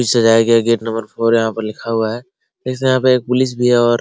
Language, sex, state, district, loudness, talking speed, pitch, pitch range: Hindi, male, Bihar, Araria, -15 LUFS, 300 wpm, 115 Hz, 115-125 Hz